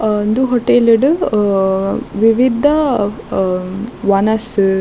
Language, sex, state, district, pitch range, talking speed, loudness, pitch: Tulu, female, Karnataka, Dakshina Kannada, 200-245 Hz, 85 wpm, -14 LUFS, 220 Hz